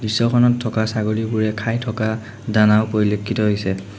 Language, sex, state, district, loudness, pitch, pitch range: Assamese, male, Assam, Sonitpur, -19 LUFS, 110 Hz, 105-115 Hz